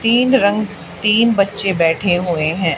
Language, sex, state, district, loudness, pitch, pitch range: Hindi, female, Haryana, Charkhi Dadri, -15 LUFS, 200 Hz, 175-215 Hz